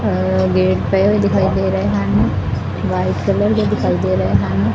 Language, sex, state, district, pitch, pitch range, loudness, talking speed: Punjabi, female, Punjab, Fazilka, 100 Hz, 95-105 Hz, -16 LUFS, 190 wpm